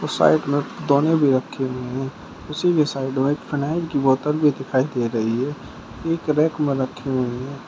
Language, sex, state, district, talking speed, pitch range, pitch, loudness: Hindi, male, Uttar Pradesh, Shamli, 205 wpm, 130-150 Hz, 135 Hz, -21 LUFS